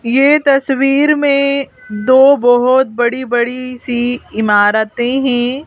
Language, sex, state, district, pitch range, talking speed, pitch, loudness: Hindi, female, Madhya Pradesh, Bhopal, 240-275 Hz, 105 wpm, 255 Hz, -12 LUFS